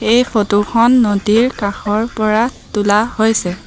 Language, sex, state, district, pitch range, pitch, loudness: Assamese, female, Assam, Sonitpur, 205-230 Hz, 215 Hz, -14 LUFS